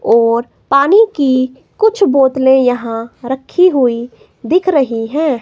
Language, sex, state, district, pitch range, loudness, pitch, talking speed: Hindi, female, Himachal Pradesh, Shimla, 240-310 Hz, -13 LUFS, 265 Hz, 120 wpm